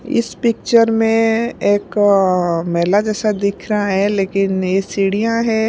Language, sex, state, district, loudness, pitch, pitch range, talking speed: Hindi, female, Punjab, Pathankot, -16 LUFS, 205 Hz, 195-225 Hz, 145 wpm